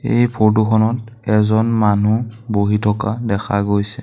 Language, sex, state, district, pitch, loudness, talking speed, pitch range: Assamese, male, Assam, Sonitpur, 110 Hz, -17 LUFS, 135 wpm, 105-115 Hz